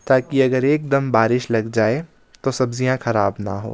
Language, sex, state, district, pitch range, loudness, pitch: Hindi, male, Himachal Pradesh, Shimla, 110-135 Hz, -19 LUFS, 125 Hz